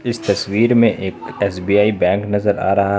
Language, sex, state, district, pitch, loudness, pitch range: Hindi, male, Uttar Pradesh, Lucknow, 100 Hz, -17 LUFS, 100-105 Hz